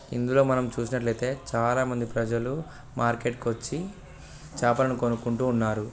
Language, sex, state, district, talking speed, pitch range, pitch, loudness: Telugu, male, Andhra Pradesh, Guntur, 110 wpm, 120-130 Hz, 120 Hz, -27 LUFS